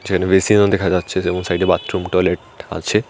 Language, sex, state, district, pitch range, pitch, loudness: Bengali, male, Tripura, Unakoti, 90-100 Hz, 95 Hz, -17 LUFS